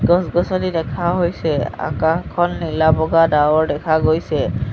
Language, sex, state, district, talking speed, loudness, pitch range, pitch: Assamese, female, Assam, Sonitpur, 100 wpm, -18 LUFS, 155-175 Hz, 160 Hz